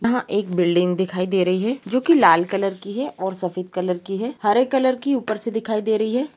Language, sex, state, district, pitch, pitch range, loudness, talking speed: Hindi, female, Uttar Pradesh, Jalaun, 210 Hz, 185-245 Hz, -21 LUFS, 265 wpm